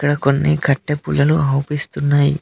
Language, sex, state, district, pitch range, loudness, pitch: Telugu, male, Telangana, Mahabubabad, 140-150 Hz, -17 LUFS, 145 Hz